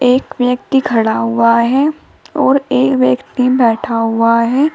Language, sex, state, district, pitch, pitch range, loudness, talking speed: Hindi, female, Uttar Pradesh, Shamli, 235 Hz, 230-260 Hz, -13 LUFS, 140 wpm